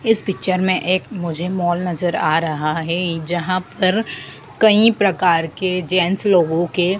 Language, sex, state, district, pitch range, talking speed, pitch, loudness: Hindi, female, Madhya Pradesh, Dhar, 170-190 Hz, 155 wpm, 180 Hz, -18 LUFS